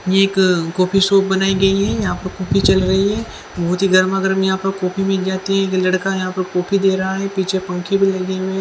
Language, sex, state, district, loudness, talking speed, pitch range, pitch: Hindi, female, Haryana, Charkhi Dadri, -17 LUFS, 260 wpm, 185-195 Hz, 190 Hz